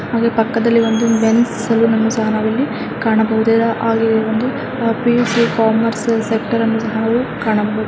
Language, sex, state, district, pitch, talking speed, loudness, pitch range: Kannada, female, Karnataka, Dharwad, 225 Hz, 165 wpm, -16 LUFS, 220-230 Hz